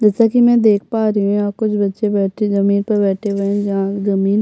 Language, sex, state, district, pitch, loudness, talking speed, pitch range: Hindi, female, Chhattisgarh, Jashpur, 205 Hz, -16 LUFS, 255 wpm, 200-215 Hz